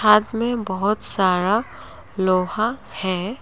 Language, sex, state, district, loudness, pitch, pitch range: Hindi, female, Assam, Kamrup Metropolitan, -21 LUFS, 210 Hz, 185-220 Hz